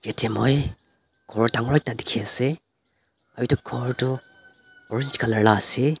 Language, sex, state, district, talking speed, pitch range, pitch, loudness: Nagamese, male, Nagaland, Dimapur, 130 wpm, 110-140 Hz, 125 Hz, -23 LUFS